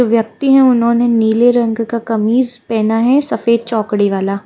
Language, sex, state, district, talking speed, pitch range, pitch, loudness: Hindi, female, Haryana, Jhajjar, 160 wpm, 220-240 Hz, 230 Hz, -13 LUFS